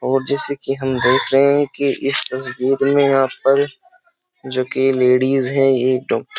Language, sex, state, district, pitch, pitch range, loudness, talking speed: Hindi, male, Uttar Pradesh, Jyotiba Phule Nagar, 135 Hz, 130-140 Hz, -17 LUFS, 190 wpm